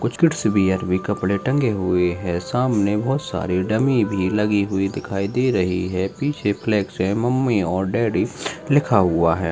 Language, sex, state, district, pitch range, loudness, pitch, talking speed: Hindi, male, Rajasthan, Nagaur, 95-120 Hz, -20 LUFS, 100 Hz, 175 wpm